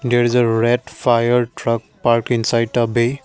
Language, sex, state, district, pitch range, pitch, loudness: English, male, Assam, Kamrup Metropolitan, 115-120 Hz, 120 Hz, -17 LUFS